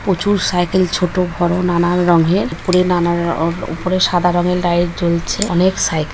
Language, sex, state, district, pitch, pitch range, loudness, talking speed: Bengali, female, West Bengal, Paschim Medinipur, 175 Hz, 170-185 Hz, -16 LUFS, 155 wpm